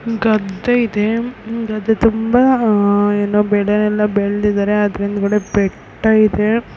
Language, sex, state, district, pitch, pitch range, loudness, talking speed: Kannada, female, Karnataka, Belgaum, 210 Hz, 205-225 Hz, -16 LUFS, 95 wpm